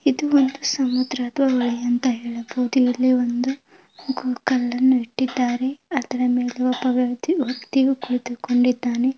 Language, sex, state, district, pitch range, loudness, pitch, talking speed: Kannada, female, Karnataka, Gulbarga, 245-265 Hz, -21 LUFS, 255 Hz, 105 wpm